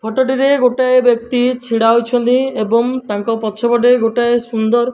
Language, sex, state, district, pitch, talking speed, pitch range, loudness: Odia, male, Odisha, Malkangiri, 240 Hz, 120 wpm, 230-255 Hz, -14 LUFS